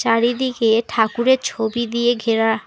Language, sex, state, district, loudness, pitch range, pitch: Bengali, female, West Bengal, Alipurduar, -18 LUFS, 225-245 Hz, 230 Hz